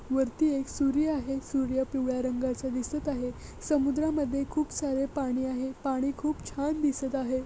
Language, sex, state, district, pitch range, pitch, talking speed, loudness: Marathi, female, Maharashtra, Nagpur, 260-295 Hz, 270 Hz, 155 wpm, -30 LUFS